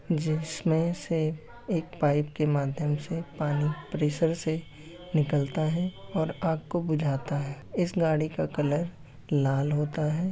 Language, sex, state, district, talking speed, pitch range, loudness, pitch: Hindi, male, Uttar Pradesh, Etah, 140 wpm, 150-165 Hz, -29 LUFS, 155 Hz